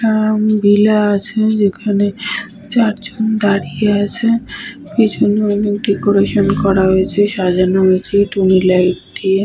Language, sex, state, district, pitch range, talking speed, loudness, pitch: Bengali, female, Jharkhand, Sahebganj, 195-215 Hz, 75 wpm, -14 LUFS, 205 Hz